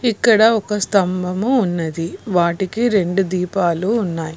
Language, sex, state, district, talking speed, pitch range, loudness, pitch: Telugu, female, Telangana, Hyderabad, 110 wpm, 175-220 Hz, -18 LUFS, 195 Hz